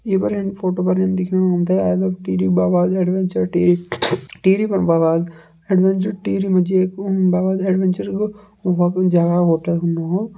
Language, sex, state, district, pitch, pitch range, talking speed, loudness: Kumaoni, male, Uttarakhand, Tehri Garhwal, 185 Hz, 165-190 Hz, 190 wpm, -18 LUFS